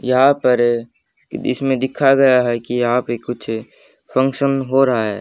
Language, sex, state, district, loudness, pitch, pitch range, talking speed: Hindi, male, Haryana, Jhajjar, -17 LUFS, 125 Hz, 120-135 Hz, 160 wpm